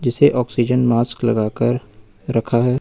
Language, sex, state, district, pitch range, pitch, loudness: Hindi, male, Jharkhand, Ranchi, 115-125 Hz, 120 Hz, -18 LUFS